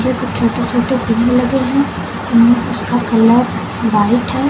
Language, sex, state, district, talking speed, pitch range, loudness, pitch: Hindi, female, Uttar Pradesh, Lucknow, 145 wpm, 230-255 Hz, -14 LUFS, 240 Hz